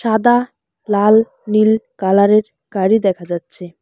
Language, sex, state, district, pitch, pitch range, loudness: Bengali, male, West Bengal, Alipurduar, 210 Hz, 195-220 Hz, -15 LUFS